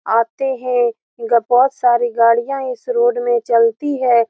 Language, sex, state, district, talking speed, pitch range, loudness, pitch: Hindi, female, Bihar, Saran, 155 wpm, 235-255 Hz, -16 LUFS, 240 Hz